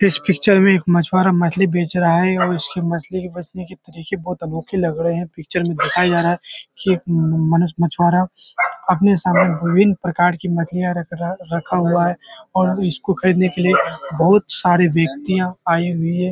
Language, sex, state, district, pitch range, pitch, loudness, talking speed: Hindi, male, Bihar, Kishanganj, 170-185 Hz, 180 Hz, -17 LUFS, 195 wpm